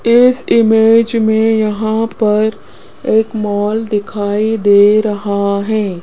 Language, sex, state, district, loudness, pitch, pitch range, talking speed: Hindi, female, Rajasthan, Jaipur, -13 LUFS, 215 Hz, 205-225 Hz, 110 wpm